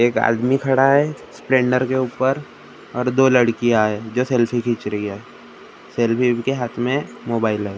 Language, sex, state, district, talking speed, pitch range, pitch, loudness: Hindi, male, Maharashtra, Gondia, 195 wpm, 115-130 Hz, 120 Hz, -19 LUFS